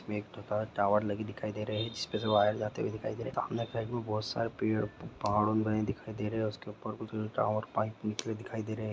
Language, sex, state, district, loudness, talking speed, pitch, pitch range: Hindi, male, Jharkhand, Jamtara, -34 LUFS, 230 wpm, 110 Hz, 105-110 Hz